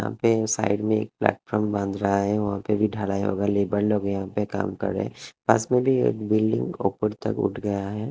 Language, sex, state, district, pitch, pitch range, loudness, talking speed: Hindi, male, Haryana, Rohtak, 105 Hz, 100-110 Hz, -24 LUFS, 235 wpm